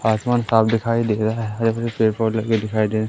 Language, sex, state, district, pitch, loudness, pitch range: Hindi, male, Madhya Pradesh, Katni, 110 Hz, -20 LUFS, 110-115 Hz